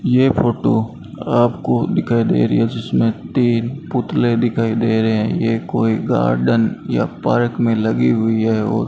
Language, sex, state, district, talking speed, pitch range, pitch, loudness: Hindi, male, Rajasthan, Bikaner, 170 wpm, 110-120 Hz, 115 Hz, -17 LUFS